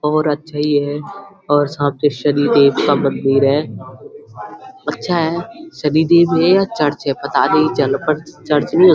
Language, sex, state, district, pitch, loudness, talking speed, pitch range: Hindi, male, Uttarakhand, Uttarkashi, 150 Hz, -16 LUFS, 185 wpm, 145-170 Hz